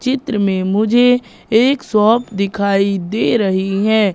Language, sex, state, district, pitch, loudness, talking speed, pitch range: Hindi, female, Madhya Pradesh, Katni, 215 Hz, -15 LUFS, 130 wpm, 200-235 Hz